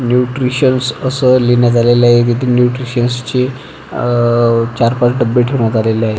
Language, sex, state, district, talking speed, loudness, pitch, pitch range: Marathi, male, Maharashtra, Pune, 145 wpm, -12 LUFS, 120 Hz, 120-125 Hz